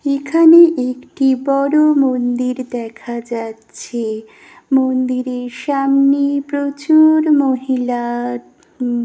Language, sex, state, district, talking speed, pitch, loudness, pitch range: Bengali, female, West Bengal, Kolkata, 65 wpm, 265 Hz, -15 LUFS, 245-285 Hz